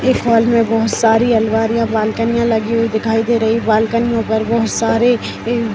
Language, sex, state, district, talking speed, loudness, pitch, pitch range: Hindi, female, Bihar, Madhepura, 200 wpm, -15 LUFS, 225 Hz, 225-230 Hz